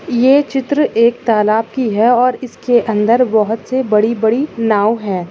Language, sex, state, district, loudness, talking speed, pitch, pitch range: Hindi, female, Chhattisgarh, Kabirdham, -14 LUFS, 160 wpm, 235 Hz, 220-255 Hz